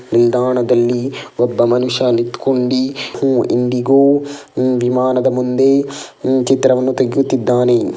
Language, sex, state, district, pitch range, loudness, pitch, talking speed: Kannada, male, Karnataka, Dakshina Kannada, 125-135 Hz, -15 LUFS, 125 Hz, 90 wpm